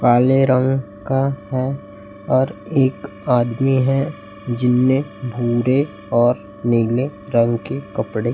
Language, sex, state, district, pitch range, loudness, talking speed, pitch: Hindi, male, Chhattisgarh, Raipur, 120-135 Hz, -19 LUFS, 115 wpm, 125 Hz